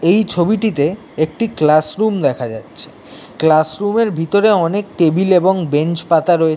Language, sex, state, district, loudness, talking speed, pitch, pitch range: Bengali, male, West Bengal, Kolkata, -15 LUFS, 155 wpm, 175 Hz, 155-205 Hz